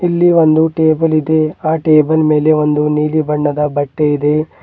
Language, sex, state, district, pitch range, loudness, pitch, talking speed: Kannada, male, Karnataka, Bidar, 150-160 Hz, -13 LUFS, 155 Hz, 155 wpm